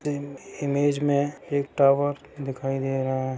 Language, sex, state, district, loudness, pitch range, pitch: Hindi, male, Bihar, Sitamarhi, -25 LUFS, 135-145 Hz, 140 Hz